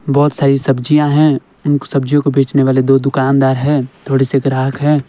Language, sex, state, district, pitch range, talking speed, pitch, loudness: Hindi, male, Himachal Pradesh, Shimla, 135-145 Hz, 190 wpm, 140 Hz, -13 LUFS